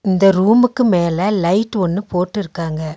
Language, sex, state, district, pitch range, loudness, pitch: Tamil, female, Tamil Nadu, Nilgiris, 175-210 Hz, -16 LUFS, 190 Hz